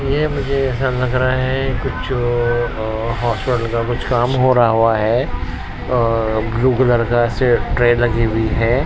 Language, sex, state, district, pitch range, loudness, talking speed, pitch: Hindi, male, Maharashtra, Mumbai Suburban, 115-130 Hz, -17 LUFS, 170 wpm, 120 Hz